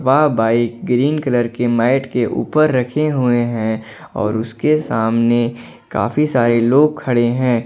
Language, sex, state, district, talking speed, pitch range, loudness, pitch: Hindi, male, Jharkhand, Ranchi, 150 wpm, 115-135 Hz, -16 LUFS, 120 Hz